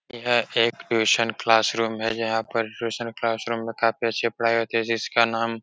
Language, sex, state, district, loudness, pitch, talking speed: Hindi, male, Uttar Pradesh, Etah, -23 LUFS, 115 Hz, 190 wpm